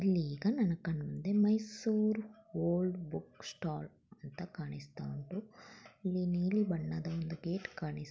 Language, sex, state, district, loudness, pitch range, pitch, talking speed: Kannada, female, Karnataka, Chamarajanagar, -36 LUFS, 160-210 Hz, 180 Hz, 120 wpm